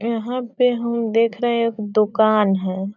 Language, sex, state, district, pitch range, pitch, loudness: Hindi, female, Bihar, Sitamarhi, 215-235 Hz, 230 Hz, -19 LUFS